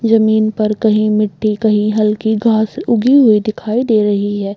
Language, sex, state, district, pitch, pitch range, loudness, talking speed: Hindi, female, Chhattisgarh, Balrampur, 215 Hz, 210-225 Hz, -13 LUFS, 170 wpm